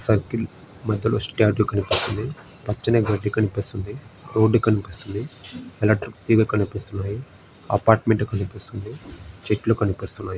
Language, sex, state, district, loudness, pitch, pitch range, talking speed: Telugu, male, Andhra Pradesh, Srikakulam, -23 LUFS, 105 Hz, 100-110 Hz, 90 wpm